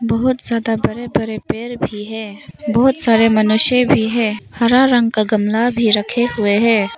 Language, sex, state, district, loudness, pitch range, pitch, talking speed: Hindi, female, Arunachal Pradesh, Papum Pare, -15 LUFS, 215-240 Hz, 225 Hz, 170 wpm